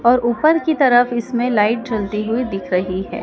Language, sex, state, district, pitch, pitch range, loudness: Hindi, male, Madhya Pradesh, Dhar, 235 Hz, 210-245 Hz, -17 LUFS